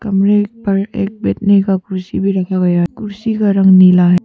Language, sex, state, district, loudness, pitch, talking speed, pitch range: Hindi, female, Arunachal Pradesh, Papum Pare, -13 LUFS, 195 Hz, 210 wpm, 185-205 Hz